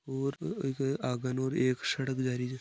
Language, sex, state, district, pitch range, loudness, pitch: Marwari, male, Rajasthan, Nagaur, 130-135 Hz, -32 LUFS, 130 Hz